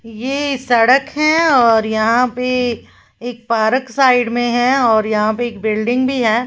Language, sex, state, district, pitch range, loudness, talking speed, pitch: Hindi, female, Uttar Pradesh, Lalitpur, 225-255 Hz, -15 LUFS, 165 wpm, 240 Hz